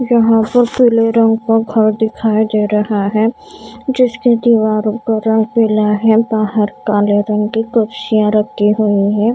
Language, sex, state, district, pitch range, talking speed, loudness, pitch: Hindi, female, Maharashtra, Mumbai Suburban, 210-230 Hz, 155 wpm, -13 LUFS, 220 Hz